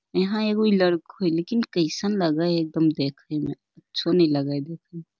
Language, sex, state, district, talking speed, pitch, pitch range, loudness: Magahi, female, Bihar, Lakhisarai, 220 wpm, 170 Hz, 160-185 Hz, -24 LUFS